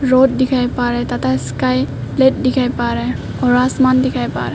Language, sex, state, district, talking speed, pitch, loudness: Hindi, female, Arunachal Pradesh, Papum Pare, 235 wpm, 195 Hz, -16 LUFS